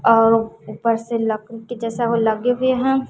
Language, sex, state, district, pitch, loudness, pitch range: Hindi, female, Bihar, West Champaran, 230 Hz, -19 LUFS, 225-245 Hz